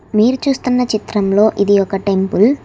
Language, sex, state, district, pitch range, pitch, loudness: Telugu, female, Telangana, Hyderabad, 200-250 Hz, 210 Hz, -15 LUFS